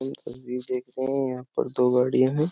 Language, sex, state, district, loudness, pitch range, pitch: Hindi, male, Uttar Pradesh, Jyotiba Phule Nagar, -26 LUFS, 125-130 Hz, 130 Hz